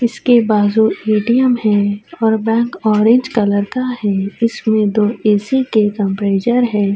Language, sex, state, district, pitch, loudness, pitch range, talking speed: Urdu, female, Uttar Pradesh, Budaun, 215 Hz, -15 LUFS, 205-235 Hz, 140 wpm